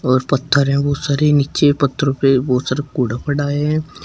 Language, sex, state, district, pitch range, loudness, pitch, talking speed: Hindi, male, Uttar Pradesh, Shamli, 135-145 Hz, -17 LUFS, 140 Hz, 190 wpm